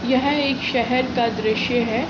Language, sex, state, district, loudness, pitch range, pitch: Hindi, female, Uttar Pradesh, Hamirpur, -20 LUFS, 230-260 Hz, 245 Hz